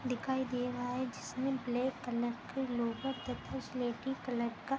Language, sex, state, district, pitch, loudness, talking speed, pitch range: Hindi, female, Jharkhand, Sahebganj, 250 Hz, -37 LUFS, 150 wpm, 240-265 Hz